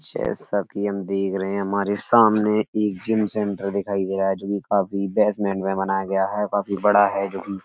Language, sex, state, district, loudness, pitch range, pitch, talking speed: Hindi, male, Uttar Pradesh, Etah, -22 LUFS, 95-105 Hz, 100 Hz, 225 wpm